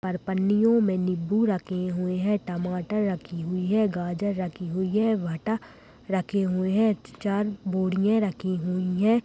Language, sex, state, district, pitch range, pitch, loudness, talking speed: Hindi, male, Chhattisgarh, Sarguja, 180-210 Hz, 190 Hz, -26 LUFS, 155 wpm